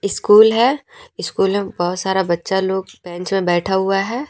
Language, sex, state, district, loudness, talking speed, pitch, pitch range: Hindi, female, Jharkhand, Deoghar, -17 LUFS, 180 wpm, 195 Hz, 190-220 Hz